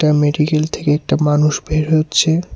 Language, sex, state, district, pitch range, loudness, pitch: Bengali, male, Tripura, West Tripura, 150-155 Hz, -15 LUFS, 150 Hz